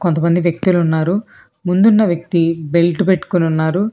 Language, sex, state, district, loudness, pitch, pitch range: Telugu, female, Telangana, Hyderabad, -15 LUFS, 175 Hz, 165-185 Hz